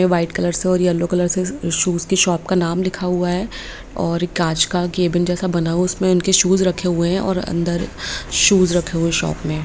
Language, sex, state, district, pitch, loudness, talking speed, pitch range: Hindi, female, Bihar, Lakhisarai, 180 Hz, -18 LUFS, 225 wpm, 170-185 Hz